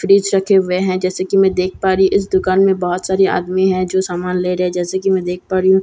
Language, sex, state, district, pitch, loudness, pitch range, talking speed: Hindi, female, Bihar, Katihar, 190 Hz, -16 LUFS, 185-190 Hz, 290 wpm